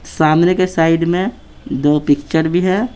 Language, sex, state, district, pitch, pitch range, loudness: Hindi, male, Bihar, Patna, 165 Hz, 155-185 Hz, -15 LUFS